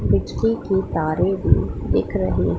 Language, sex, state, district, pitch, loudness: Hindi, female, Punjab, Pathankot, 130 Hz, -21 LUFS